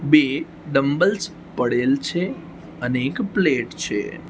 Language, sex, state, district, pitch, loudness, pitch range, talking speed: Gujarati, male, Gujarat, Gandhinagar, 145 Hz, -22 LUFS, 135-165 Hz, 110 wpm